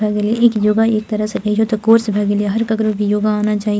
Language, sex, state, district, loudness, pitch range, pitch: Maithili, female, Bihar, Purnia, -16 LUFS, 210-220 Hz, 215 Hz